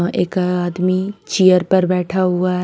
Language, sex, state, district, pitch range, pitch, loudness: Hindi, female, Maharashtra, Mumbai Suburban, 180-185 Hz, 185 Hz, -17 LUFS